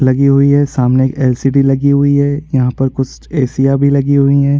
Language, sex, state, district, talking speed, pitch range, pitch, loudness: Hindi, male, Chhattisgarh, Rajnandgaon, 220 wpm, 130-140 Hz, 140 Hz, -12 LUFS